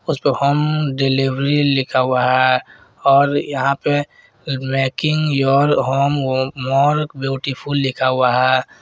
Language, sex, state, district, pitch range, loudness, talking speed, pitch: Hindi, male, Jharkhand, Garhwa, 130-145 Hz, -17 LUFS, 125 wpm, 135 Hz